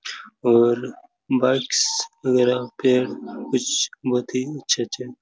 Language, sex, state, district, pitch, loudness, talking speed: Hindi, male, Chhattisgarh, Raigarh, 130 Hz, -21 LUFS, 90 wpm